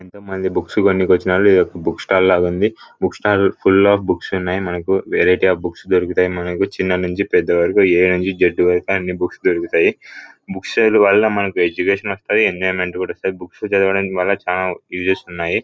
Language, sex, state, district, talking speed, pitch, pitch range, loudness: Telugu, male, Andhra Pradesh, Anantapur, 155 wpm, 95 Hz, 90-100 Hz, -17 LUFS